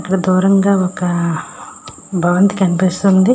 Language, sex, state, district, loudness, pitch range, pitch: Telugu, female, Andhra Pradesh, Srikakulam, -14 LUFS, 180-195 Hz, 185 Hz